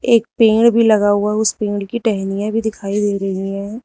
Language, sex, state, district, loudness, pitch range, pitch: Hindi, female, Uttar Pradesh, Lucknow, -16 LUFS, 200-225 Hz, 210 Hz